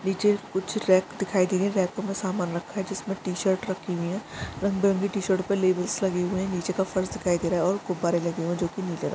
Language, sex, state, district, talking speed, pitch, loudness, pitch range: Hindi, male, Jharkhand, Jamtara, 275 wpm, 190 Hz, -26 LUFS, 180-195 Hz